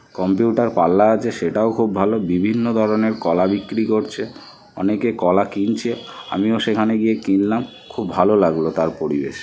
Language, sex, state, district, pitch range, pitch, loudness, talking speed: Bengali, male, West Bengal, North 24 Parganas, 95-110 Hz, 105 Hz, -19 LUFS, 155 wpm